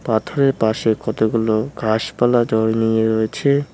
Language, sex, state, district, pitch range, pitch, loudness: Bengali, male, West Bengal, Cooch Behar, 110-120 Hz, 110 Hz, -18 LUFS